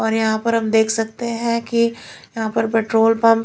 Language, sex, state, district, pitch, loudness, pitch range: Hindi, female, Chhattisgarh, Raipur, 225 Hz, -18 LUFS, 225-230 Hz